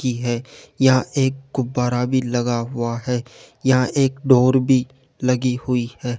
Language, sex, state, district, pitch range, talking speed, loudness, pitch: Hindi, male, Rajasthan, Jaipur, 120-130 Hz, 155 wpm, -20 LUFS, 125 Hz